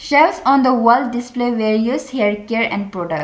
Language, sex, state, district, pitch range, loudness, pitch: English, female, Arunachal Pradesh, Lower Dibang Valley, 215-255 Hz, -16 LUFS, 240 Hz